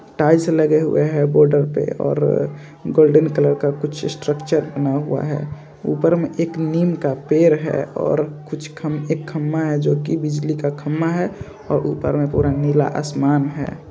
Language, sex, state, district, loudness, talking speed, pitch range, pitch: Hindi, male, Bihar, Saharsa, -19 LUFS, 175 wpm, 145-155 Hz, 150 Hz